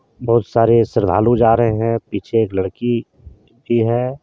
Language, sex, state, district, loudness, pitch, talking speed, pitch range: Hindi, male, Jharkhand, Deoghar, -17 LUFS, 115 Hz, 155 wpm, 110-120 Hz